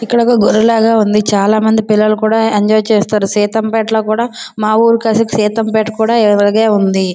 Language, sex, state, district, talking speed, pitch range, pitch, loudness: Telugu, female, Andhra Pradesh, Srikakulam, 160 wpm, 210-225 Hz, 220 Hz, -12 LUFS